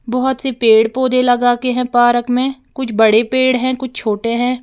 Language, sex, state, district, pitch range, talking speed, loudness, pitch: Hindi, female, Uttar Pradesh, Lalitpur, 240-255 Hz, 205 wpm, -15 LUFS, 250 Hz